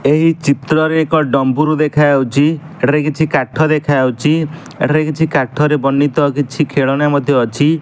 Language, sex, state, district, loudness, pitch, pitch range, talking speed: Odia, male, Odisha, Malkangiri, -14 LUFS, 150 Hz, 140-155 Hz, 140 wpm